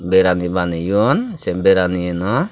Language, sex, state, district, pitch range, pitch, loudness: Chakma, male, Tripura, Dhalai, 90-100 Hz, 90 Hz, -17 LUFS